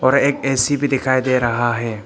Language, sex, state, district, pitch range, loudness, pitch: Hindi, male, Arunachal Pradesh, Papum Pare, 120-135 Hz, -17 LUFS, 130 Hz